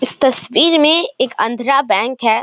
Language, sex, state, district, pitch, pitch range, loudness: Hindi, female, Bihar, Samastipur, 260 Hz, 225-275 Hz, -14 LUFS